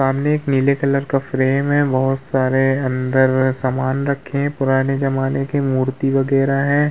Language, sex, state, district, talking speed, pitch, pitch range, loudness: Hindi, male, Uttar Pradesh, Hamirpur, 165 wpm, 135 Hz, 130-140 Hz, -18 LUFS